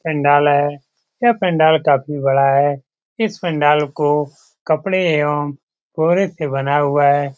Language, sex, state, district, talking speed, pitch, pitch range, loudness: Hindi, male, Bihar, Lakhisarai, 130 wpm, 150 Hz, 145-165 Hz, -16 LUFS